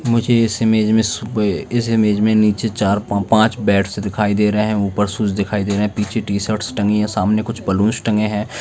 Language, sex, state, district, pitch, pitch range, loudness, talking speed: Hindi, male, Bihar, Darbhanga, 105 Hz, 100-110 Hz, -17 LUFS, 225 wpm